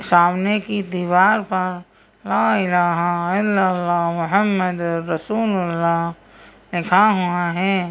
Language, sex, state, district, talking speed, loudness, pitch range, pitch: Hindi, female, Madhya Pradesh, Bhopal, 105 wpm, -19 LUFS, 175-195 Hz, 180 Hz